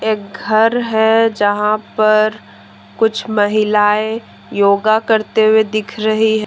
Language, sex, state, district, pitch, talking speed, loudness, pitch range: Hindi, female, Jharkhand, Deoghar, 215 Hz, 110 wpm, -14 LUFS, 210-220 Hz